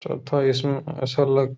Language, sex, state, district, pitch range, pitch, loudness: Hindi, male, Uttar Pradesh, Hamirpur, 135-140 Hz, 135 Hz, -23 LUFS